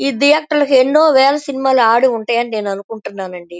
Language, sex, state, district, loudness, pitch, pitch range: Telugu, female, Andhra Pradesh, Krishna, -13 LUFS, 260 Hz, 225-280 Hz